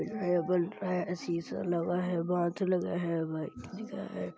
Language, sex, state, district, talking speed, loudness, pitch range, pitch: Hindi, female, Chhattisgarh, Balrampur, 165 wpm, -33 LUFS, 170-180 Hz, 175 Hz